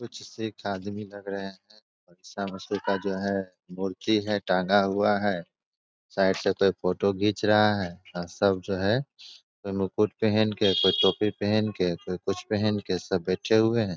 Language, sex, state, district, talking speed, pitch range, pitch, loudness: Hindi, male, Bihar, Begusarai, 170 wpm, 95-105 Hz, 100 Hz, -26 LUFS